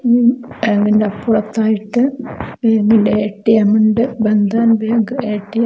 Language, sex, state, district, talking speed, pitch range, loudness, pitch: Malayalam, female, Kerala, Kozhikode, 95 wpm, 210-230 Hz, -15 LUFS, 220 Hz